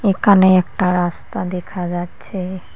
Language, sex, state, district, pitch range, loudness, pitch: Bengali, female, West Bengal, Cooch Behar, 180-190 Hz, -17 LUFS, 180 Hz